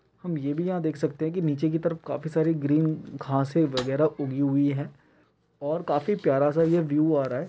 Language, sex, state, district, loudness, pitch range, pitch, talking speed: Hindi, male, Uttar Pradesh, Etah, -26 LUFS, 145-160 Hz, 155 Hz, 225 wpm